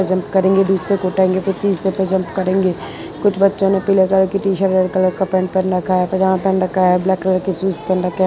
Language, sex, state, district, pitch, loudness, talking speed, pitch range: Hindi, female, Gujarat, Valsad, 190 Hz, -16 LUFS, 255 wpm, 185-195 Hz